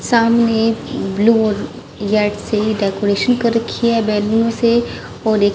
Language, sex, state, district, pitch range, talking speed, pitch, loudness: Hindi, male, Haryana, Charkhi Dadri, 210-230 Hz, 140 wpm, 225 Hz, -16 LUFS